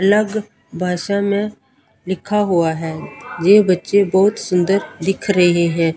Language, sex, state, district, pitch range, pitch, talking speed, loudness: Hindi, female, Punjab, Pathankot, 175-200 Hz, 190 Hz, 140 wpm, -17 LUFS